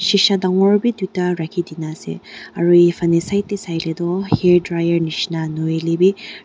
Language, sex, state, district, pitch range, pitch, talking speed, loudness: Nagamese, female, Nagaland, Dimapur, 165-190 Hz, 175 Hz, 165 wpm, -17 LUFS